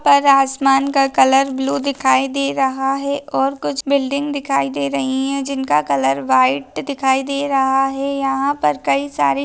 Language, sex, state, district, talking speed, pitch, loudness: Hindi, female, Maharashtra, Pune, 170 wpm, 270 Hz, -17 LUFS